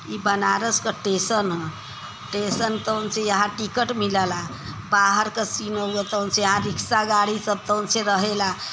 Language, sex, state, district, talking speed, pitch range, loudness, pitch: Bhojpuri, female, Uttar Pradesh, Varanasi, 125 wpm, 195-215 Hz, -22 LUFS, 205 Hz